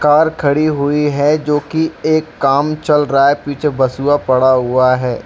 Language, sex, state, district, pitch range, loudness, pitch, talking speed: Hindi, male, Jharkhand, Jamtara, 135-150 Hz, -14 LUFS, 145 Hz, 180 wpm